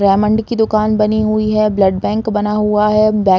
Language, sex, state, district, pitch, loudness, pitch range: Hindi, female, Uttar Pradesh, Varanasi, 210 Hz, -14 LUFS, 210-215 Hz